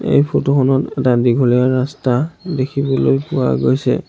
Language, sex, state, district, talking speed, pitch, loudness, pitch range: Assamese, male, Assam, Sonitpur, 130 wpm, 130 Hz, -16 LUFS, 120-140 Hz